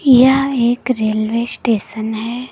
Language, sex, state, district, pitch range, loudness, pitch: Hindi, female, Uttar Pradesh, Lucknow, 220-255 Hz, -16 LUFS, 235 Hz